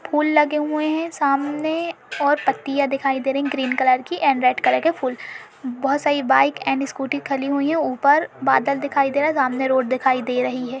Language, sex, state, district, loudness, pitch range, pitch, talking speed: Hindi, female, Uttar Pradesh, Budaun, -20 LUFS, 265-295 Hz, 280 Hz, 215 wpm